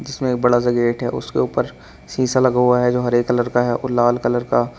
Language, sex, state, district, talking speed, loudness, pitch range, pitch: Hindi, male, Uttar Pradesh, Shamli, 260 wpm, -18 LUFS, 120-125 Hz, 120 Hz